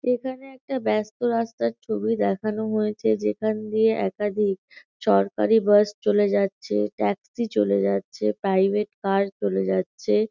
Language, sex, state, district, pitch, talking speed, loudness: Bengali, female, West Bengal, North 24 Parganas, 200 Hz, 120 wpm, -24 LUFS